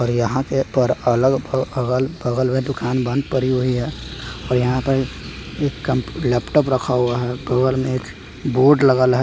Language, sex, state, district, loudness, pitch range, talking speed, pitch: Hindi, male, Bihar, West Champaran, -19 LUFS, 125-130 Hz, 180 wpm, 130 Hz